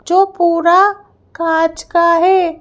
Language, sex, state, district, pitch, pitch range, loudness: Hindi, female, Madhya Pradesh, Bhopal, 340 Hz, 330-375 Hz, -13 LUFS